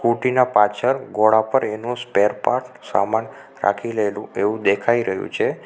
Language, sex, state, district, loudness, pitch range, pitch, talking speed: Gujarati, male, Gujarat, Navsari, -20 LUFS, 105-125 Hz, 115 Hz, 150 wpm